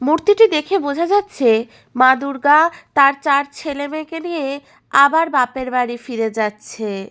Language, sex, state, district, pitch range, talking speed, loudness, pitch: Bengali, female, West Bengal, Malda, 250-320 Hz, 125 wpm, -17 LUFS, 280 Hz